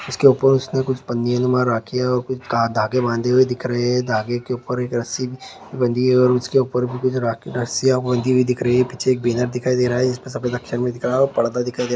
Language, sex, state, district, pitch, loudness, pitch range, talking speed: Hindi, male, West Bengal, Purulia, 125 Hz, -19 LUFS, 120-130 Hz, 280 wpm